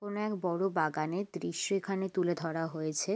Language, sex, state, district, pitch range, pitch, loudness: Bengali, female, West Bengal, Jalpaiguri, 160-195 Hz, 180 Hz, -33 LUFS